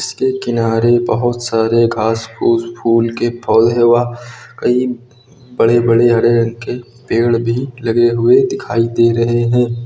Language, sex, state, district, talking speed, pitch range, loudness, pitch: Hindi, male, Uttar Pradesh, Lucknow, 145 wpm, 115-120 Hz, -14 LUFS, 120 Hz